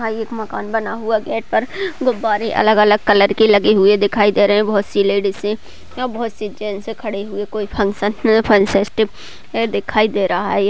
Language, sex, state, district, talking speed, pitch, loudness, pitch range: Hindi, female, Chhattisgarh, Balrampur, 190 wpm, 210 Hz, -16 LUFS, 205-225 Hz